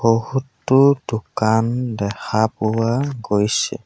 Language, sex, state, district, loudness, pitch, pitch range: Assamese, male, Assam, Sonitpur, -19 LUFS, 115 Hz, 110-130 Hz